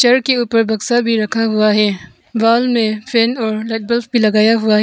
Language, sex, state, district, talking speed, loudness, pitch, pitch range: Hindi, female, Arunachal Pradesh, Papum Pare, 210 wpm, -15 LUFS, 225 Hz, 215-235 Hz